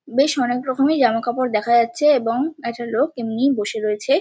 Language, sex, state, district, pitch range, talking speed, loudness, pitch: Bengali, female, West Bengal, Kolkata, 235-275 Hz, 185 wpm, -19 LUFS, 245 Hz